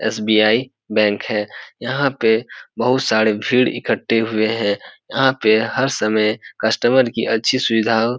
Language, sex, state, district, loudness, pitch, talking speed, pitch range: Hindi, male, Bihar, Supaul, -18 LUFS, 115 Hz, 145 wpm, 110-125 Hz